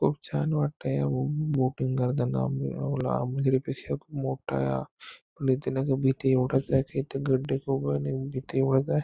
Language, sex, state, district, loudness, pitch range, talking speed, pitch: Marathi, male, Maharashtra, Nagpur, -28 LUFS, 125-135 Hz, 120 wpm, 130 Hz